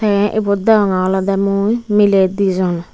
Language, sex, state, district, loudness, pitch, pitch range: Chakma, female, Tripura, Unakoti, -15 LUFS, 200 Hz, 190-210 Hz